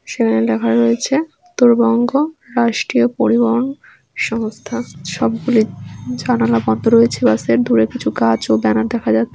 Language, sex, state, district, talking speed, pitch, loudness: Bengali, female, West Bengal, Dakshin Dinajpur, 130 wpm, 160 Hz, -16 LUFS